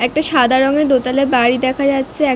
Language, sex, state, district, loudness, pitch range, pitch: Bengali, female, West Bengal, Dakshin Dinajpur, -14 LUFS, 255-280 Hz, 265 Hz